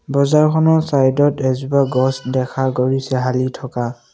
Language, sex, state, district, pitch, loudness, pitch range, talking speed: Assamese, male, Assam, Sonitpur, 130 Hz, -17 LUFS, 130-140 Hz, 130 wpm